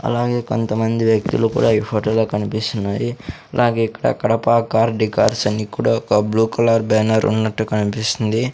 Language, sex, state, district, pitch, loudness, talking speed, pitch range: Telugu, male, Andhra Pradesh, Sri Satya Sai, 110 Hz, -18 LUFS, 145 wpm, 110-115 Hz